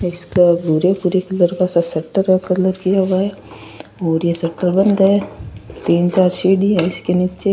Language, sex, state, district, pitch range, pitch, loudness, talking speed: Rajasthani, female, Rajasthan, Churu, 170-190 Hz, 180 Hz, -16 LUFS, 165 wpm